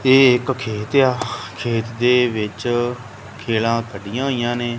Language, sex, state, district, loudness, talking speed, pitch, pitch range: Punjabi, male, Punjab, Kapurthala, -19 LUFS, 150 wpm, 120 Hz, 115-125 Hz